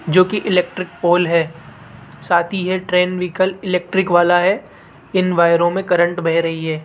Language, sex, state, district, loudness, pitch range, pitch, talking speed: Hindi, female, Rajasthan, Jaipur, -17 LUFS, 170-185 Hz, 180 Hz, 175 wpm